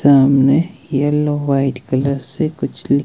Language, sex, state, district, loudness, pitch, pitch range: Hindi, male, Himachal Pradesh, Shimla, -16 LUFS, 140 Hz, 135-150 Hz